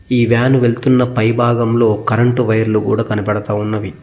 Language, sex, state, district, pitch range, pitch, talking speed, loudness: Telugu, male, Telangana, Mahabubabad, 110-120 Hz, 115 Hz, 150 wpm, -14 LUFS